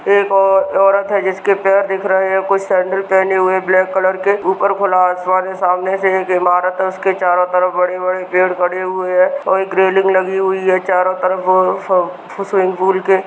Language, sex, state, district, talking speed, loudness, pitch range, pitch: Hindi, male, Bihar, Purnia, 200 wpm, -14 LUFS, 185-195 Hz, 190 Hz